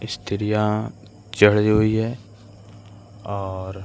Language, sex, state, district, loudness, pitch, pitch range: Hindi, male, Bihar, Gaya, -21 LUFS, 105 Hz, 100-110 Hz